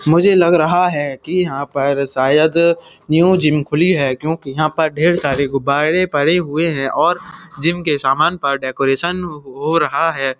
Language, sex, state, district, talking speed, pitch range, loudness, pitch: Hindi, male, Uttar Pradesh, Budaun, 175 wpm, 140-170 Hz, -15 LUFS, 155 Hz